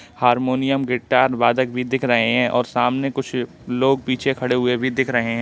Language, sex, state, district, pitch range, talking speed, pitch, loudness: Hindi, male, Uttar Pradesh, Budaun, 125-130 Hz, 200 wpm, 125 Hz, -19 LUFS